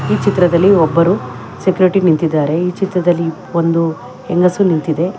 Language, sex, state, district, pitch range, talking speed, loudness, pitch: Kannada, female, Karnataka, Bangalore, 165-185 Hz, 105 wpm, -14 LUFS, 175 Hz